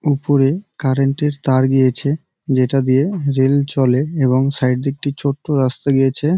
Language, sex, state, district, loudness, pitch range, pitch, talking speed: Bengali, male, West Bengal, Jalpaiguri, -17 LUFS, 130-145 Hz, 135 Hz, 150 wpm